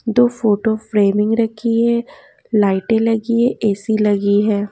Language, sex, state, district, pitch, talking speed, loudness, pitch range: Hindi, female, Haryana, Jhajjar, 220 Hz, 140 wpm, -16 LUFS, 205-230 Hz